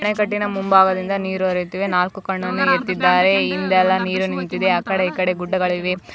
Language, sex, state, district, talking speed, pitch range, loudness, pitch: Kannada, female, Karnataka, Belgaum, 105 wpm, 180-195 Hz, -18 LUFS, 185 Hz